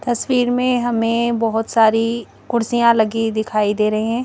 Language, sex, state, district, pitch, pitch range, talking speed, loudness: Hindi, female, Madhya Pradesh, Bhopal, 230 Hz, 220-240 Hz, 155 wpm, -17 LUFS